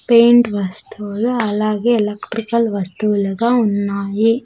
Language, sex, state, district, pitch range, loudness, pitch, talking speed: Telugu, female, Andhra Pradesh, Sri Satya Sai, 205-235 Hz, -17 LUFS, 215 Hz, 80 wpm